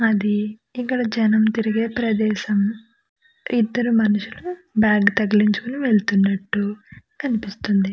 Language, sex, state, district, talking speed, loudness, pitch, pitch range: Telugu, female, Andhra Pradesh, Krishna, 85 wpm, -20 LUFS, 215 Hz, 205-235 Hz